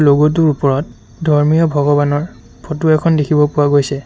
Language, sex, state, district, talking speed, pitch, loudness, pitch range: Assamese, male, Assam, Sonitpur, 150 wpm, 145 Hz, -14 LUFS, 140-155 Hz